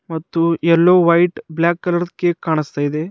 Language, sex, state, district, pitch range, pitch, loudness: Kannada, male, Karnataka, Bidar, 160-175 Hz, 170 Hz, -16 LUFS